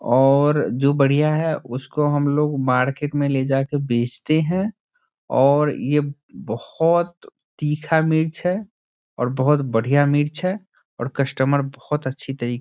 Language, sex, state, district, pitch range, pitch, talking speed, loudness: Hindi, male, Bihar, Saran, 135-155 Hz, 145 Hz, 145 wpm, -20 LUFS